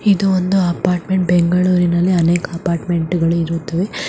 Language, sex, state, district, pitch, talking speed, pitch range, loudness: Kannada, male, Karnataka, Raichur, 175 Hz, 115 wpm, 170-185 Hz, -16 LUFS